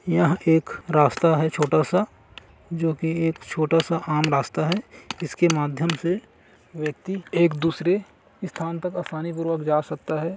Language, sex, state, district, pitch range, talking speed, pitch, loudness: Hindi, male, Chhattisgarh, Kabirdham, 155-175 Hz, 155 wpm, 165 Hz, -23 LUFS